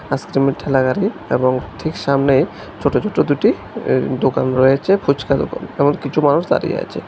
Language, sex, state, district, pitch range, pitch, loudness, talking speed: Bengali, male, Tripura, West Tripura, 130-145 Hz, 140 Hz, -17 LUFS, 145 wpm